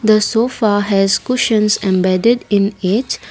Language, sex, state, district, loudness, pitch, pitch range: English, female, Assam, Kamrup Metropolitan, -15 LUFS, 210 Hz, 195-230 Hz